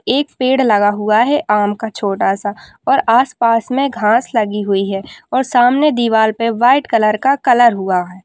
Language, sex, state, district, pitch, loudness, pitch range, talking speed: Hindi, female, Bihar, Kishanganj, 230 Hz, -14 LUFS, 205-255 Hz, 175 wpm